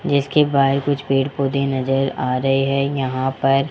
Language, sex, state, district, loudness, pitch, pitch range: Hindi, male, Rajasthan, Jaipur, -19 LUFS, 135 Hz, 135-140 Hz